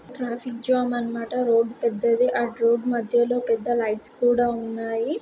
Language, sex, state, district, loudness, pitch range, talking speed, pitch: Telugu, female, Andhra Pradesh, Srikakulam, -23 LUFS, 230-245 Hz, 125 wpm, 240 Hz